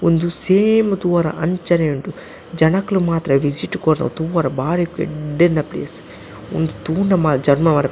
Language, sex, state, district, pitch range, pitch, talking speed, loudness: Tulu, male, Karnataka, Dakshina Kannada, 150-175 Hz, 165 Hz, 130 wpm, -18 LUFS